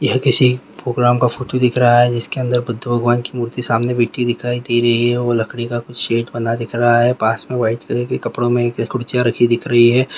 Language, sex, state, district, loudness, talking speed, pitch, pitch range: Hindi, male, Chhattisgarh, Raigarh, -16 LUFS, 255 wpm, 120 Hz, 120-125 Hz